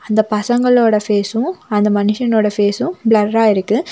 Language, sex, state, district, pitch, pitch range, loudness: Tamil, female, Tamil Nadu, Nilgiris, 215 Hz, 210-230 Hz, -15 LUFS